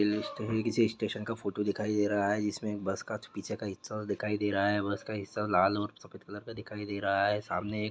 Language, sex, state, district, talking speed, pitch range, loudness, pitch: Hindi, male, Bihar, East Champaran, 260 wpm, 100-105 Hz, -32 LUFS, 105 Hz